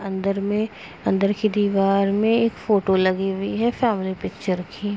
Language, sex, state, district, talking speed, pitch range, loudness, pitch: Hindi, female, Uttar Pradesh, Etah, 170 wpm, 195-210 Hz, -22 LUFS, 200 Hz